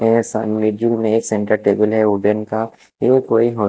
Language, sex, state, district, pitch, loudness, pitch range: Hindi, male, Chhattisgarh, Raipur, 110 Hz, -17 LUFS, 105-115 Hz